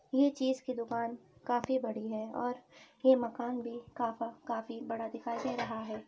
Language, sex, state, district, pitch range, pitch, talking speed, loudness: Hindi, female, Uttar Pradesh, Ghazipur, 230-250 Hz, 240 Hz, 175 wpm, -35 LUFS